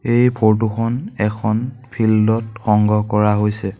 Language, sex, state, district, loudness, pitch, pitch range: Assamese, male, Assam, Sonitpur, -17 LUFS, 110 Hz, 105-115 Hz